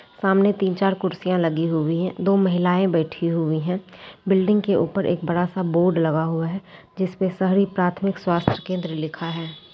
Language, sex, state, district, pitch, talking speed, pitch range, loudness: Hindi, female, Bihar, Purnia, 180 Hz, 170 wpm, 165-190 Hz, -22 LUFS